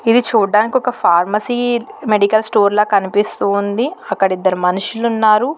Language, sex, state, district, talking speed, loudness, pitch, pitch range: Telugu, female, Telangana, Hyderabad, 130 wpm, -15 LUFS, 215 Hz, 200-235 Hz